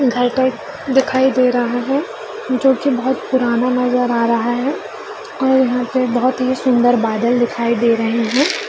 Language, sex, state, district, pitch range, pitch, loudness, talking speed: Hindi, female, Bihar, Jamui, 240-265 Hz, 250 Hz, -16 LUFS, 180 wpm